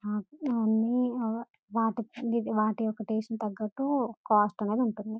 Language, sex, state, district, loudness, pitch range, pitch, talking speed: Telugu, female, Telangana, Karimnagar, -30 LUFS, 215-235 Hz, 225 Hz, 115 wpm